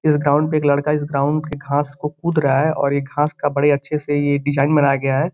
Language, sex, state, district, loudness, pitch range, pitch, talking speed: Hindi, male, Uttar Pradesh, Gorakhpur, -18 LUFS, 140-150 Hz, 145 Hz, 290 wpm